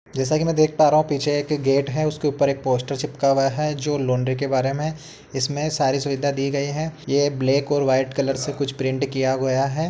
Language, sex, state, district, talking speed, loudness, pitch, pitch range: Hindi, male, Uttar Pradesh, Etah, 240 wpm, -22 LUFS, 140 Hz, 135-150 Hz